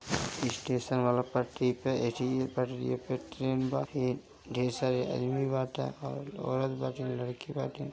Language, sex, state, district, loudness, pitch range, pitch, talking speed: Hindi, male, Uttar Pradesh, Gorakhpur, -33 LUFS, 125-130 Hz, 125 Hz, 160 wpm